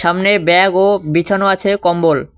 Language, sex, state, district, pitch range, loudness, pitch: Bengali, male, West Bengal, Cooch Behar, 170-195 Hz, -13 LUFS, 185 Hz